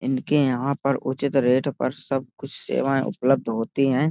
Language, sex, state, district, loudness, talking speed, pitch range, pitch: Hindi, male, Uttar Pradesh, Hamirpur, -23 LUFS, 175 wpm, 130-140 Hz, 135 Hz